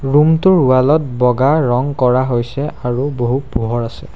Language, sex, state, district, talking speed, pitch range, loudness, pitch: Assamese, male, Assam, Sonitpur, 175 wpm, 125-145 Hz, -15 LUFS, 130 Hz